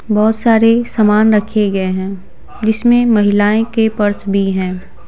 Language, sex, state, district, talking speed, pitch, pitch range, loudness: Hindi, female, Bihar, Patna, 140 wpm, 210 Hz, 200-225 Hz, -13 LUFS